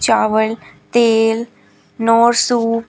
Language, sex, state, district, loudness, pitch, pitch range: Hindi, female, Uttar Pradesh, Shamli, -15 LUFS, 230 Hz, 225-235 Hz